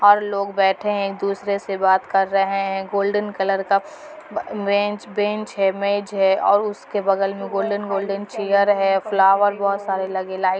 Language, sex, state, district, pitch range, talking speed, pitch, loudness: Hindi, female, Bihar, Kishanganj, 195-205 Hz, 190 wpm, 200 Hz, -20 LUFS